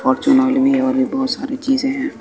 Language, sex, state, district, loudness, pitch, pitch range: Hindi, male, Bihar, West Champaran, -17 LUFS, 270 Hz, 265-270 Hz